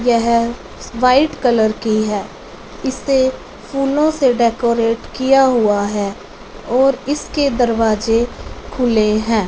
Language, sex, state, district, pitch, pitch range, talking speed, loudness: Hindi, female, Punjab, Fazilka, 235 Hz, 220-265 Hz, 110 wpm, -16 LUFS